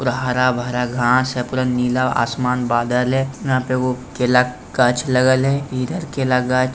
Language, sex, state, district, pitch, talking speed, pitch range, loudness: Hindi, male, Bihar, Lakhisarai, 125 Hz, 175 wpm, 125-130 Hz, -18 LUFS